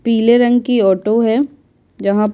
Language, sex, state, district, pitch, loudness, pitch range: Hindi, female, Bihar, Kishanganj, 230 Hz, -14 LUFS, 210-245 Hz